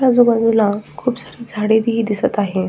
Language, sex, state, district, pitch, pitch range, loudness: Marathi, female, Maharashtra, Sindhudurg, 225 Hz, 210-235 Hz, -17 LUFS